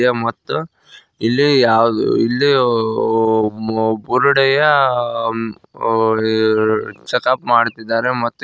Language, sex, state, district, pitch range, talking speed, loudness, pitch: Kannada, male, Karnataka, Koppal, 110-125 Hz, 120 wpm, -16 LUFS, 115 Hz